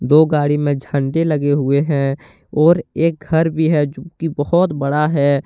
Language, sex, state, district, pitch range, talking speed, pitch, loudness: Hindi, male, Jharkhand, Deoghar, 140-160 Hz, 175 wpm, 150 Hz, -17 LUFS